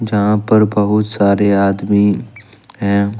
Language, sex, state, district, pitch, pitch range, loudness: Hindi, male, Jharkhand, Deoghar, 105 Hz, 100-105 Hz, -14 LUFS